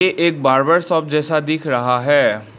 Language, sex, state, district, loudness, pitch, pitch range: Hindi, male, Arunachal Pradesh, Lower Dibang Valley, -16 LUFS, 150 Hz, 130-165 Hz